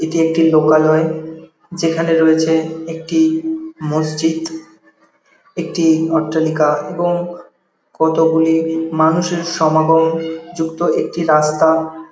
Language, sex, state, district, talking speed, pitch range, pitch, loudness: Bengali, male, West Bengal, Dakshin Dinajpur, 80 wpm, 160-175 Hz, 160 Hz, -15 LUFS